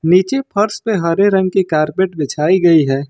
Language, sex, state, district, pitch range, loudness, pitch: Hindi, male, Jharkhand, Ranchi, 155-200 Hz, -14 LUFS, 185 Hz